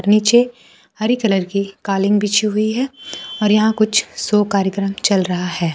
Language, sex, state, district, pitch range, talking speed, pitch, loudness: Hindi, female, Bihar, Kaimur, 195-215 Hz, 165 wpm, 210 Hz, -17 LUFS